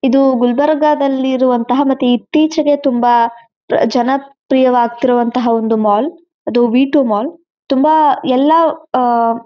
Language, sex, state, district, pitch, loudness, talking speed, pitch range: Kannada, female, Karnataka, Gulbarga, 265 Hz, -13 LUFS, 100 wpm, 240-295 Hz